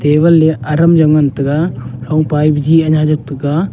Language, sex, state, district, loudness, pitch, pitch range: Wancho, male, Arunachal Pradesh, Longding, -12 LUFS, 155 Hz, 145-160 Hz